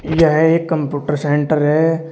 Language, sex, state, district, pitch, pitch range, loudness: Hindi, male, Uttar Pradesh, Shamli, 155 Hz, 150-160 Hz, -16 LUFS